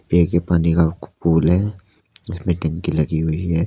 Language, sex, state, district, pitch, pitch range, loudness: Hindi, male, Uttar Pradesh, Saharanpur, 85 Hz, 80-90 Hz, -19 LUFS